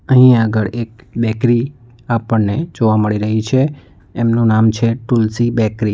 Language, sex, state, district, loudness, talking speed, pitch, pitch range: Gujarati, male, Gujarat, Valsad, -15 LUFS, 140 wpm, 115 Hz, 110-120 Hz